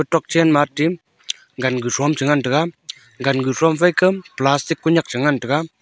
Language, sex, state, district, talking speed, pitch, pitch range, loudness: Wancho, male, Arunachal Pradesh, Longding, 115 wpm, 150 Hz, 135-165 Hz, -18 LUFS